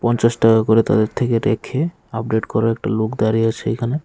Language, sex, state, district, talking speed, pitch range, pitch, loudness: Bengali, male, Tripura, West Tripura, 190 wpm, 110-120 Hz, 115 Hz, -18 LUFS